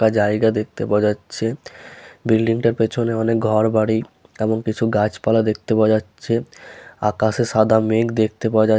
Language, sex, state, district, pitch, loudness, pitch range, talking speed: Bengali, male, West Bengal, Malda, 110 Hz, -19 LUFS, 110-115 Hz, 165 wpm